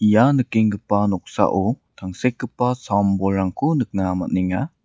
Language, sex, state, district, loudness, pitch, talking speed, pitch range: Garo, male, Meghalaya, West Garo Hills, -20 LUFS, 105 Hz, 85 wpm, 95-125 Hz